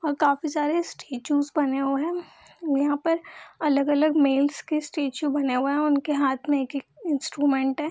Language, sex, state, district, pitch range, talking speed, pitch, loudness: Hindi, female, Bihar, Purnia, 275-305 Hz, 150 wpm, 290 Hz, -25 LUFS